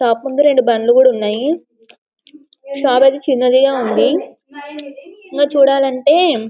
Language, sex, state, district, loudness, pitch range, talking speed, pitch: Telugu, female, Telangana, Karimnagar, -13 LUFS, 250-290 Hz, 120 wpm, 275 Hz